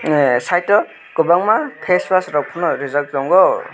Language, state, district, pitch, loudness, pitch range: Kokborok, Tripura, West Tripura, 175 Hz, -16 LUFS, 145-185 Hz